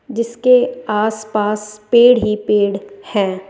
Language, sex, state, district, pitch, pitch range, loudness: Hindi, female, Rajasthan, Jaipur, 215 Hz, 210-235 Hz, -15 LUFS